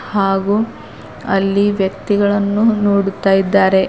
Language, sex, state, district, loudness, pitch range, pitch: Kannada, female, Karnataka, Bidar, -15 LUFS, 195-205 Hz, 200 Hz